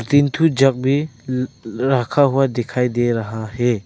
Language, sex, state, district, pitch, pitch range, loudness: Hindi, male, Arunachal Pradesh, Lower Dibang Valley, 125 Hz, 120-135 Hz, -18 LUFS